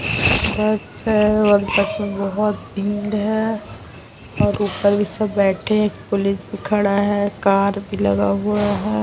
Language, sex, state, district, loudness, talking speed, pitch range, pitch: Hindi, female, Bihar, Vaishali, -19 LUFS, 160 wpm, 195-210 Hz, 200 Hz